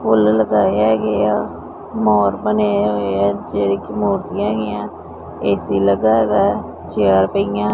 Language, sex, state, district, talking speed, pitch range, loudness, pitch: Punjabi, male, Punjab, Pathankot, 145 wpm, 100-105 Hz, -17 LUFS, 105 Hz